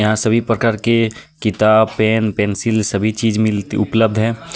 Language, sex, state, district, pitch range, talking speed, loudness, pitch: Hindi, male, Jharkhand, Deoghar, 110-115 Hz, 160 wpm, -16 LUFS, 110 Hz